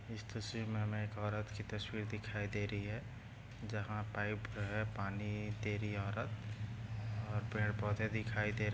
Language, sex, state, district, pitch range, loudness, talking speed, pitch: Hindi, male, Maharashtra, Aurangabad, 105-110 Hz, -41 LUFS, 180 wpm, 105 Hz